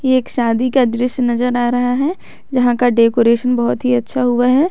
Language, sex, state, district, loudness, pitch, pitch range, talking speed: Hindi, female, Jharkhand, Garhwa, -15 LUFS, 245 Hz, 240-255 Hz, 205 wpm